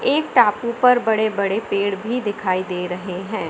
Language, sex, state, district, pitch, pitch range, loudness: Hindi, male, Madhya Pradesh, Katni, 205 Hz, 190-235 Hz, -20 LUFS